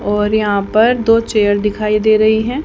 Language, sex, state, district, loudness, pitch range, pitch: Hindi, female, Haryana, Jhajjar, -13 LUFS, 210-225 Hz, 215 Hz